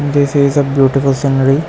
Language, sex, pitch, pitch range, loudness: English, male, 140 Hz, 135-145 Hz, -13 LUFS